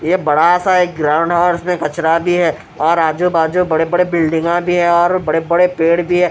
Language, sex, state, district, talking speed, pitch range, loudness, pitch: Hindi, male, Bihar, Katihar, 210 wpm, 160-180 Hz, -14 LUFS, 170 Hz